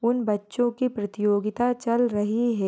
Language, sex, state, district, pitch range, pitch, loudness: Hindi, female, Maharashtra, Sindhudurg, 210-240 Hz, 230 Hz, -25 LUFS